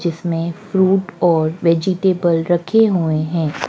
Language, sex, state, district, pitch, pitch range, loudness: Hindi, female, Madhya Pradesh, Dhar, 170 Hz, 165-190 Hz, -17 LUFS